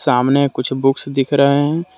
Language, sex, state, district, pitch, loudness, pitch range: Hindi, male, Jharkhand, Deoghar, 140 Hz, -16 LUFS, 135-145 Hz